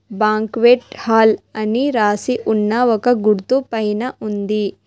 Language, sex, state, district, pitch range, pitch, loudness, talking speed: Telugu, female, Telangana, Hyderabad, 215-245 Hz, 220 Hz, -17 LUFS, 100 wpm